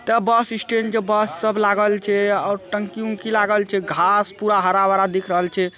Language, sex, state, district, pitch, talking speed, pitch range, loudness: Hindi, male, Bihar, Araria, 205 Hz, 205 wpm, 195-215 Hz, -19 LUFS